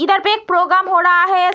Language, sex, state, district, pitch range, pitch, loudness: Hindi, female, Bihar, Kishanganj, 355-380 Hz, 365 Hz, -13 LUFS